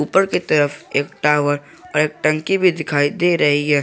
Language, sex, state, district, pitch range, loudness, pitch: Hindi, male, Jharkhand, Garhwa, 145-170 Hz, -18 LUFS, 150 Hz